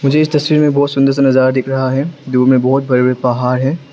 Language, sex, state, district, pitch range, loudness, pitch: Hindi, male, Arunachal Pradesh, Lower Dibang Valley, 130-140 Hz, -13 LUFS, 135 Hz